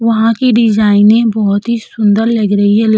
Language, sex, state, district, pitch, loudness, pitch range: Hindi, female, Uttar Pradesh, Jalaun, 220 Hz, -11 LUFS, 210-230 Hz